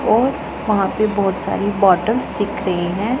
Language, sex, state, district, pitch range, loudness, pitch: Hindi, female, Punjab, Pathankot, 195-220 Hz, -18 LUFS, 205 Hz